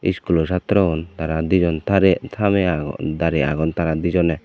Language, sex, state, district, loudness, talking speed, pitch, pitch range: Chakma, male, Tripura, Dhalai, -19 LUFS, 135 wpm, 85 Hz, 80-95 Hz